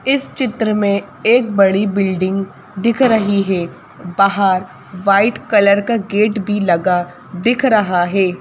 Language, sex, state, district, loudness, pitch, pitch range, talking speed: Hindi, female, Madhya Pradesh, Bhopal, -15 LUFS, 200 Hz, 190-220 Hz, 135 wpm